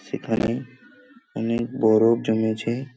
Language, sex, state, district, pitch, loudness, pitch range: Bengali, male, West Bengal, Paschim Medinipur, 115 Hz, -23 LUFS, 110-130 Hz